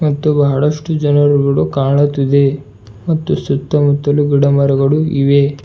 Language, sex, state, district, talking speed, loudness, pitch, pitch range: Kannada, male, Karnataka, Bidar, 95 wpm, -13 LUFS, 140 Hz, 140-145 Hz